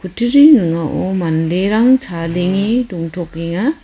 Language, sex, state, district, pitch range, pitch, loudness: Garo, female, Meghalaya, West Garo Hills, 165-240 Hz, 185 Hz, -14 LUFS